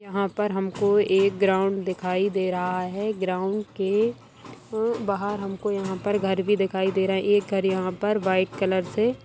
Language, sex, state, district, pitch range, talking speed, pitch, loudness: Hindi, male, Bihar, Saran, 190-205 Hz, 180 wpm, 195 Hz, -24 LUFS